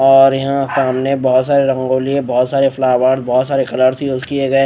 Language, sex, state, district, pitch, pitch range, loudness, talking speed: Hindi, male, Odisha, Nuapada, 135 Hz, 130-135 Hz, -14 LUFS, 195 wpm